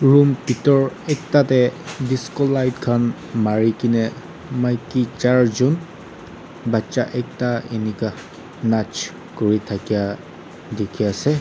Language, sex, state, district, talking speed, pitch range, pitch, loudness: Nagamese, male, Nagaland, Dimapur, 95 wpm, 110-140 Hz, 125 Hz, -20 LUFS